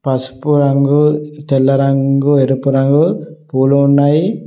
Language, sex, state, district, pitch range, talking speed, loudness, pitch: Telugu, male, Telangana, Mahabubabad, 135-150 Hz, 110 wpm, -13 LUFS, 140 Hz